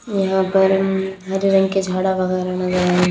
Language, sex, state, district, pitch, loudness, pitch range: Hindi, female, Haryana, Rohtak, 190 Hz, -18 LUFS, 185-195 Hz